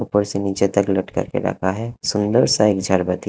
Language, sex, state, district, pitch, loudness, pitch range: Hindi, male, Haryana, Rohtak, 100 Hz, -19 LUFS, 95-105 Hz